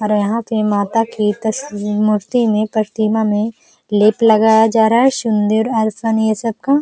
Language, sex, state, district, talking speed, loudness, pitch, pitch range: Hindi, female, Uttar Pradesh, Jalaun, 165 wpm, -15 LUFS, 220 Hz, 210-225 Hz